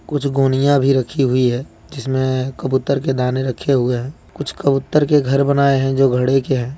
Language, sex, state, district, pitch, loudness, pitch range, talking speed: Hindi, male, Jharkhand, Deoghar, 135 Hz, -17 LUFS, 130-140 Hz, 205 wpm